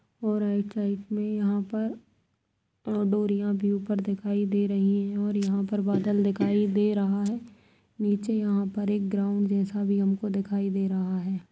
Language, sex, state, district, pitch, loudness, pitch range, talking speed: Kumaoni, female, Uttarakhand, Tehri Garhwal, 200 Hz, -27 LUFS, 195-205 Hz, 180 wpm